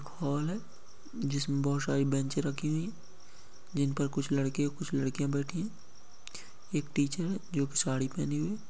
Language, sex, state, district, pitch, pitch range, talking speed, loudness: Hindi, male, West Bengal, Malda, 145 Hz, 140-160 Hz, 165 wpm, -33 LUFS